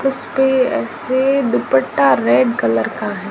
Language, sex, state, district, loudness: Hindi, male, Rajasthan, Jaisalmer, -16 LUFS